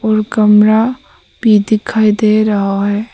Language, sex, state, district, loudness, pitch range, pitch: Hindi, female, Arunachal Pradesh, Papum Pare, -12 LUFS, 210-220 Hz, 215 Hz